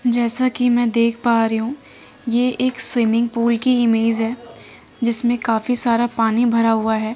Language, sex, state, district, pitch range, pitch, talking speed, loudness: Hindi, male, Delhi, New Delhi, 230-245 Hz, 235 Hz, 175 wpm, -17 LUFS